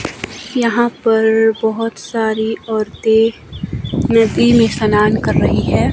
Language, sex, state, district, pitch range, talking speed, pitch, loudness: Hindi, male, Himachal Pradesh, Shimla, 220-230 Hz, 110 wpm, 225 Hz, -15 LUFS